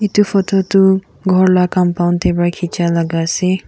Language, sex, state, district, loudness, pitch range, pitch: Nagamese, female, Nagaland, Kohima, -14 LUFS, 175-190 Hz, 180 Hz